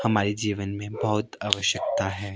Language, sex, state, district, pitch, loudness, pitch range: Hindi, male, Himachal Pradesh, Shimla, 105 Hz, -26 LUFS, 100-105 Hz